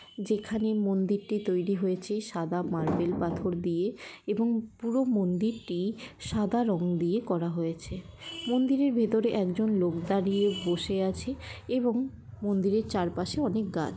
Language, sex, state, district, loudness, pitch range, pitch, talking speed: Bengali, female, West Bengal, Kolkata, -29 LUFS, 175-220 Hz, 200 Hz, 125 wpm